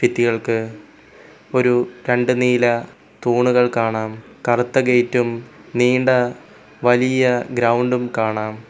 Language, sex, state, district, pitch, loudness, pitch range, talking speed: Malayalam, male, Kerala, Kollam, 120 Hz, -18 LUFS, 115-125 Hz, 85 wpm